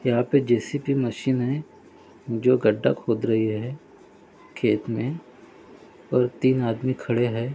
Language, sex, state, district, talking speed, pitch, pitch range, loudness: Hindi, male, Maharashtra, Dhule, 135 wpm, 125 Hz, 120-130 Hz, -24 LUFS